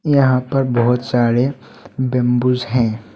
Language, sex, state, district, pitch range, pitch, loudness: Hindi, male, Assam, Hailakandi, 120-130 Hz, 125 Hz, -17 LUFS